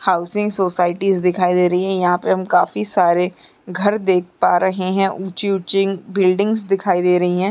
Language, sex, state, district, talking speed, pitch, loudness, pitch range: Hindi, female, Uttarakhand, Uttarkashi, 175 wpm, 185 Hz, -17 LUFS, 180-195 Hz